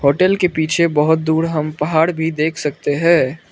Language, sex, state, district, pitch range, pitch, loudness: Hindi, male, Arunachal Pradesh, Lower Dibang Valley, 150-165 Hz, 160 Hz, -16 LUFS